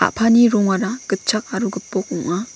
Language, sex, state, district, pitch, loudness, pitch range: Garo, female, Meghalaya, West Garo Hills, 215 Hz, -18 LUFS, 195-230 Hz